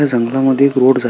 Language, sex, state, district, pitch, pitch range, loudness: Marathi, male, Maharashtra, Solapur, 130 Hz, 125-135 Hz, -13 LUFS